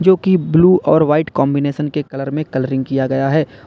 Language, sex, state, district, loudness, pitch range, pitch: Hindi, male, Uttar Pradesh, Lalitpur, -15 LUFS, 135-160 Hz, 150 Hz